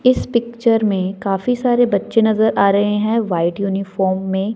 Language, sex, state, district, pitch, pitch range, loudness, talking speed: Hindi, female, Chandigarh, Chandigarh, 205 Hz, 195-230 Hz, -17 LUFS, 170 wpm